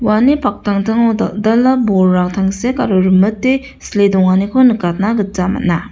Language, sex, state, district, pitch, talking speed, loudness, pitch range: Garo, female, Meghalaya, West Garo Hills, 205 Hz, 120 wpm, -13 LUFS, 190-240 Hz